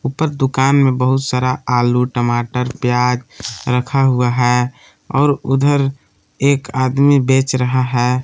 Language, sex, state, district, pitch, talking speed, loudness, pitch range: Hindi, male, Jharkhand, Palamu, 130 Hz, 130 wpm, -16 LUFS, 125-135 Hz